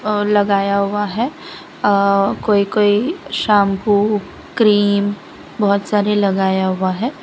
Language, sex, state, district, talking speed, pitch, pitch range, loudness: Hindi, female, Gujarat, Valsad, 115 wpm, 205 Hz, 200-215 Hz, -16 LUFS